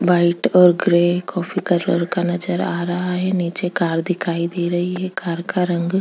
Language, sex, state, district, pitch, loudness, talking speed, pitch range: Hindi, female, Chhattisgarh, Kabirdham, 175 Hz, -19 LUFS, 190 wpm, 170-180 Hz